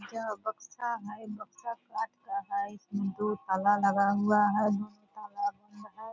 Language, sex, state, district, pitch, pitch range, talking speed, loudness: Hindi, female, Bihar, Purnia, 210 Hz, 205-230 Hz, 165 wpm, -31 LUFS